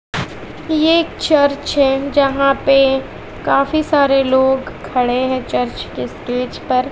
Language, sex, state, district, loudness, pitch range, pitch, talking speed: Hindi, female, Bihar, West Champaran, -16 LUFS, 255-285 Hz, 270 Hz, 130 wpm